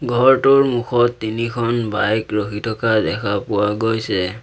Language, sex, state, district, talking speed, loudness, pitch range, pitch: Assamese, male, Assam, Sonitpur, 120 wpm, -18 LUFS, 105-120 Hz, 110 Hz